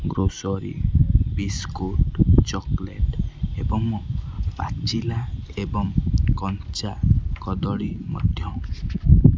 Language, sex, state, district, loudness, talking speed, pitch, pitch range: Odia, male, Odisha, Khordha, -24 LUFS, 60 wpm, 100 Hz, 95-110 Hz